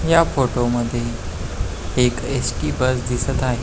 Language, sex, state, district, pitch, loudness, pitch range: Marathi, male, Maharashtra, Pune, 120 Hz, -21 LUFS, 120-130 Hz